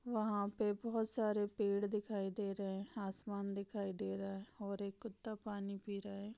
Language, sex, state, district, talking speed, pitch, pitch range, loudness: Hindi, female, Jharkhand, Sahebganj, 195 wpm, 205 Hz, 200-215 Hz, -42 LUFS